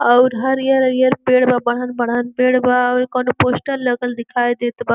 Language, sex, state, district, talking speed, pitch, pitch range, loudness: Bhojpuri, female, Uttar Pradesh, Gorakhpur, 180 wpm, 250 Hz, 240-255 Hz, -16 LUFS